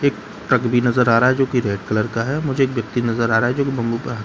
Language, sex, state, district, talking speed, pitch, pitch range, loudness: Hindi, male, Bihar, Katihar, 325 wpm, 120 Hz, 115-130 Hz, -19 LUFS